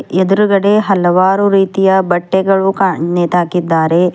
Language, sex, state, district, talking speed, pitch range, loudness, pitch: Kannada, female, Karnataka, Bidar, 85 wpm, 175-195 Hz, -12 LUFS, 190 Hz